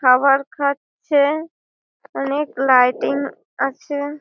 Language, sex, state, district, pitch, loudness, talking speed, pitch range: Bengali, female, West Bengal, Malda, 280 Hz, -19 LUFS, 85 wpm, 270-290 Hz